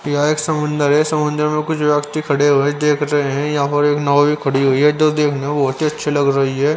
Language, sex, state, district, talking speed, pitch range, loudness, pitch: Hindi, male, Haryana, Rohtak, 275 wpm, 145-150 Hz, -16 LUFS, 145 Hz